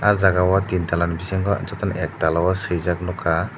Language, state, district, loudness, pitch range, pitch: Kokborok, Tripura, Dhalai, -21 LUFS, 85-95 Hz, 90 Hz